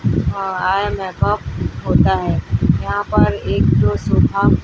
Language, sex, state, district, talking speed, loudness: Hindi, female, Odisha, Sambalpur, 130 wpm, -17 LUFS